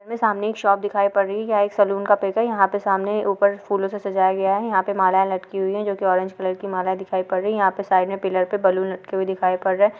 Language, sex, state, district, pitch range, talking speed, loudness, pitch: Hindi, female, Chhattisgarh, Korba, 190-205 Hz, 305 wpm, -21 LUFS, 195 Hz